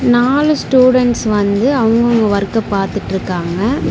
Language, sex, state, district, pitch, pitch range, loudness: Tamil, female, Tamil Nadu, Chennai, 225 Hz, 200-255 Hz, -14 LUFS